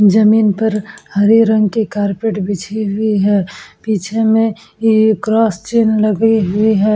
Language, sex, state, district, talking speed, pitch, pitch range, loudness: Hindi, female, Uttar Pradesh, Etah, 145 wpm, 215 Hz, 205-220 Hz, -14 LUFS